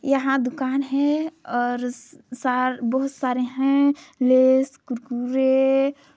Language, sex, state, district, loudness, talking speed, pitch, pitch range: Hindi, female, Chhattisgarh, Sarguja, -22 LUFS, 95 wpm, 265 Hz, 250-275 Hz